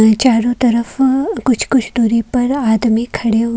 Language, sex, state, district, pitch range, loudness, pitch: Hindi, female, Haryana, Jhajjar, 230-250 Hz, -14 LUFS, 235 Hz